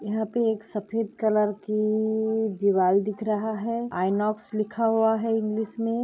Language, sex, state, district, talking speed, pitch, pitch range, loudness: Hindi, female, Goa, North and South Goa, 160 wpm, 220 Hz, 210-225 Hz, -25 LUFS